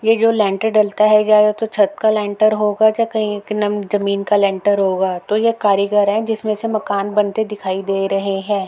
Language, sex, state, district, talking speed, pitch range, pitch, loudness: Hindi, female, Uttar Pradesh, Etah, 205 wpm, 200-215 Hz, 210 Hz, -16 LUFS